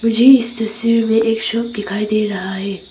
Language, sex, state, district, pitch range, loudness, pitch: Hindi, female, Arunachal Pradesh, Papum Pare, 205-230 Hz, -16 LUFS, 220 Hz